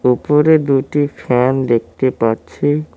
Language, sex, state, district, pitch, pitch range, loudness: Bengali, male, West Bengal, Cooch Behar, 135 Hz, 125-150 Hz, -15 LUFS